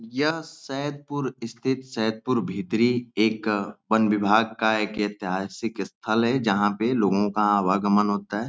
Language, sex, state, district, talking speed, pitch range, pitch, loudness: Hindi, male, Uttar Pradesh, Ghazipur, 140 wpm, 105-120 Hz, 110 Hz, -24 LUFS